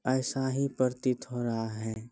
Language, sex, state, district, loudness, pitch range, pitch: Hindi, male, Bihar, Bhagalpur, -31 LUFS, 115-130 Hz, 130 Hz